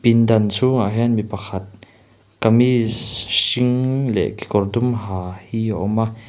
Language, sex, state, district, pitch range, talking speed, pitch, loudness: Mizo, male, Mizoram, Aizawl, 105-120 Hz, 145 wpm, 110 Hz, -18 LUFS